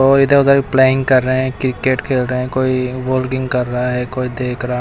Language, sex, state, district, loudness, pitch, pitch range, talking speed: Hindi, male, Himachal Pradesh, Shimla, -16 LUFS, 130 Hz, 125-130 Hz, 235 wpm